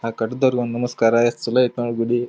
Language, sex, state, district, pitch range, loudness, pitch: Kannada, male, Karnataka, Dharwad, 115-125 Hz, -20 LUFS, 120 Hz